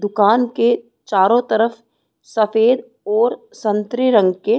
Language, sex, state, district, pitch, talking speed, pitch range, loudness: Hindi, female, Bihar, Saran, 225 Hz, 130 wpm, 210-240 Hz, -17 LUFS